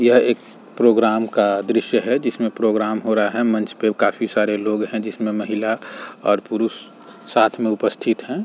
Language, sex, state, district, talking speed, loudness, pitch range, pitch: Hindi, male, Uttar Pradesh, Varanasi, 180 wpm, -19 LUFS, 105-115 Hz, 110 Hz